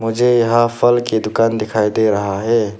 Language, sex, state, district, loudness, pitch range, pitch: Hindi, male, Arunachal Pradesh, Papum Pare, -15 LUFS, 105-120 Hz, 115 Hz